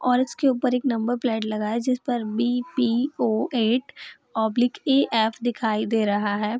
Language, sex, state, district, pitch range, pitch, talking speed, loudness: Hindi, female, Bihar, Gopalganj, 220-250 Hz, 240 Hz, 165 wpm, -23 LUFS